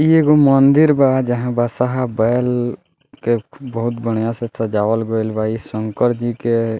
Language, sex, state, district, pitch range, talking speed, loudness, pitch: Bhojpuri, male, Bihar, Muzaffarpur, 115-125 Hz, 165 wpm, -17 LUFS, 120 Hz